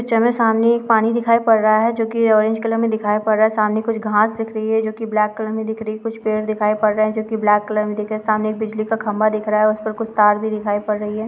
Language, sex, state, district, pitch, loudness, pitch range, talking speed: Hindi, female, Chhattisgarh, Jashpur, 220 Hz, -18 LUFS, 215-225 Hz, 335 wpm